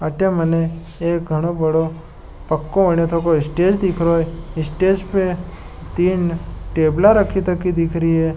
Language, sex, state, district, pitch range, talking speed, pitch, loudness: Marwari, male, Rajasthan, Nagaur, 160-180 Hz, 120 wpm, 170 Hz, -18 LUFS